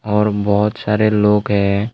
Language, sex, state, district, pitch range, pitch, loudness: Hindi, male, Tripura, West Tripura, 100-105 Hz, 105 Hz, -16 LUFS